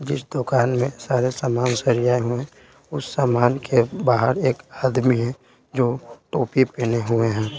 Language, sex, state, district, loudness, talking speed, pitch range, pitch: Hindi, male, Bihar, Patna, -21 LUFS, 160 wpm, 120-130 Hz, 125 Hz